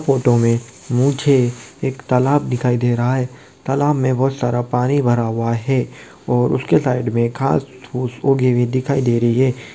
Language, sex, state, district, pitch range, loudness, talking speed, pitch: Hindi, male, Bihar, Kishanganj, 120-135 Hz, -18 LUFS, 170 wpm, 125 Hz